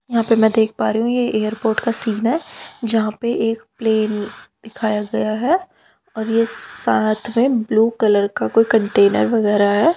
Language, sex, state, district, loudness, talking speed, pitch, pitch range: Hindi, female, Haryana, Jhajjar, -16 LUFS, 180 wpm, 225 Hz, 215-235 Hz